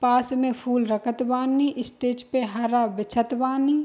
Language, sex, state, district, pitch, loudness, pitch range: Bhojpuri, female, Bihar, East Champaran, 250 Hz, -24 LUFS, 240-260 Hz